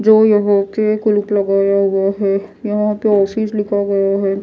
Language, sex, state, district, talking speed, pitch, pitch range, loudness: Hindi, female, Odisha, Malkangiri, 150 wpm, 205 Hz, 195-210 Hz, -15 LUFS